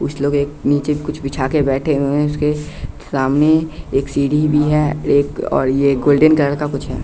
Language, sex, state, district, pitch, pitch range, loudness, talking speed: Hindi, male, Bihar, West Champaran, 145 Hz, 140-150 Hz, -16 LUFS, 195 wpm